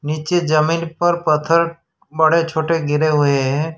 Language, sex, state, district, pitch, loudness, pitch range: Hindi, male, Gujarat, Valsad, 160 Hz, -17 LUFS, 155-165 Hz